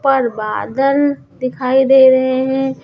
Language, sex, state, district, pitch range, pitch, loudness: Hindi, female, Chhattisgarh, Raipur, 260-270 Hz, 265 Hz, -14 LUFS